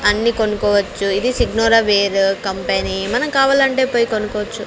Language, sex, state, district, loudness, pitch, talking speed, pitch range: Telugu, female, Andhra Pradesh, Sri Satya Sai, -16 LUFS, 210 Hz, 115 wpm, 200-235 Hz